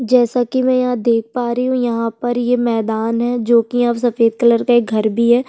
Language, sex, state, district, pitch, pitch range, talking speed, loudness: Hindi, female, Chhattisgarh, Sukma, 240 Hz, 230-245 Hz, 260 wpm, -16 LUFS